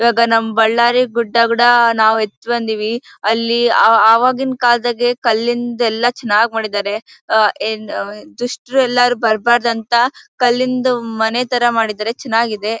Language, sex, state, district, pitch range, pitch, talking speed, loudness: Kannada, female, Karnataka, Bellary, 220-245 Hz, 235 Hz, 120 wpm, -15 LUFS